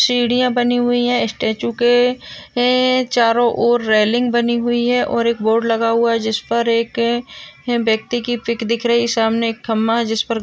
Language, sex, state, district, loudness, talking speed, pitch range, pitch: Hindi, female, Uttar Pradesh, Hamirpur, -17 LUFS, 190 wpm, 230-245 Hz, 235 Hz